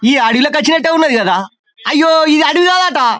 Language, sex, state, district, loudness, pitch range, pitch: Telugu, male, Telangana, Karimnagar, -11 LUFS, 290-325 Hz, 315 Hz